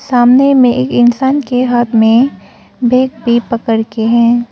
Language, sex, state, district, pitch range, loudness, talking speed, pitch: Hindi, female, Arunachal Pradesh, Papum Pare, 235-255 Hz, -11 LUFS, 160 wpm, 240 Hz